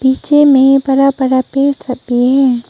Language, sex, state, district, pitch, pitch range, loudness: Hindi, female, Arunachal Pradesh, Papum Pare, 265 Hz, 255-275 Hz, -11 LUFS